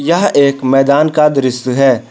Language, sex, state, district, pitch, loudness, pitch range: Hindi, male, Jharkhand, Palamu, 140 Hz, -11 LUFS, 130-145 Hz